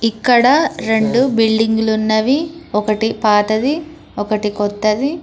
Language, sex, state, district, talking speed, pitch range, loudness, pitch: Telugu, female, Telangana, Mahabubabad, 90 wpm, 215-265 Hz, -15 LUFS, 225 Hz